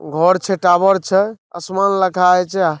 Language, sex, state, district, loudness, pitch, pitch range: Maithili, male, Bihar, Saharsa, -15 LUFS, 185 Hz, 180-195 Hz